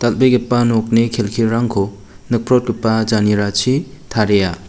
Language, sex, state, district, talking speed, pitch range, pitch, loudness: Garo, male, Meghalaya, West Garo Hills, 90 wpm, 105-120 Hz, 115 Hz, -16 LUFS